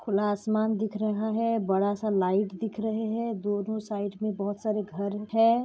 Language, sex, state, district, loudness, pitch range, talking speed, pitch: Hindi, female, Goa, North and South Goa, -28 LUFS, 205-220 Hz, 190 wpm, 215 Hz